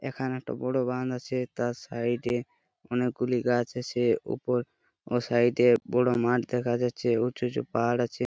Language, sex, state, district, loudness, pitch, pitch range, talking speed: Bengali, male, West Bengal, Purulia, -28 LUFS, 125 Hz, 120-125 Hz, 175 wpm